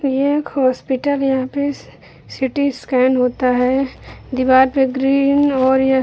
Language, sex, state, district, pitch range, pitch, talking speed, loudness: Hindi, female, Uttar Pradesh, Budaun, 260-280 Hz, 265 Hz, 140 wpm, -17 LUFS